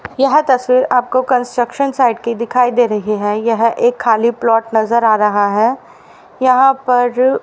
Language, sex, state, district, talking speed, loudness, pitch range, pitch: Hindi, female, Haryana, Rohtak, 160 wpm, -14 LUFS, 225-255 Hz, 240 Hz